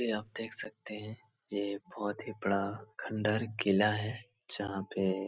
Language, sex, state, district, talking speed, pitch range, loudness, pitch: Hindi, male, Uttar Pradesh, Etah, 180 wpm, 100-110 Hz, -35 LUFS, 105 Hz